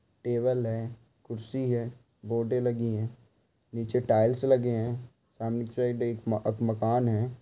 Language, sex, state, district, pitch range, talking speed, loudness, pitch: Hindi, male, Bihar, Bhagalpur, 115-125 Hz, 155 wpm, -29 LUFS, 120 Hz